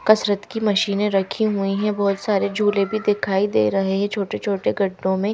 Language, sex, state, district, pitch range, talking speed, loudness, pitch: Hindi, female, Haryana, Rohtak, 195-210 Hz, 215 wpm, -21 LUFS, 200 Hz